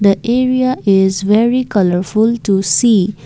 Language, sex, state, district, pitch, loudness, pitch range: English, female, Assam, Kamrup Metropolitan, 205 Hz, -13 LUFS, 195-235 Hz